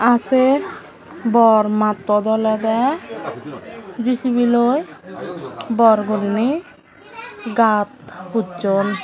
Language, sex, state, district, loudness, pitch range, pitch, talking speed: Chakma, female, Tripura, Dhalai, -17 LUFS, 210-250 Hz, 225 Hz, 75 wpm